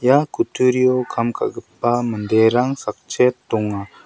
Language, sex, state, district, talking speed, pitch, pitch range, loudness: Garo, male, Meghalaya, South Garo Hills, 105 wpm, 125 Hz, 110-130 Hz, -19 LUFS